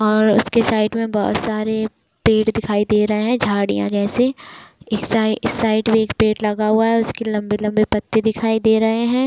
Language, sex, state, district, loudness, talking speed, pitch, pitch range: Hindi, female, Chhattisgarh, Raigarh, -18 LUFS, 195 wpm, 220 Hz, 210-225 Hz